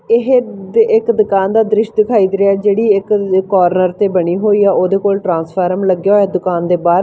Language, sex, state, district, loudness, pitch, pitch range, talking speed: Punjabi, female, Punjab, Fazilka, -13 LUFS, 195 Hz, 185-215 Hz, 205 wpm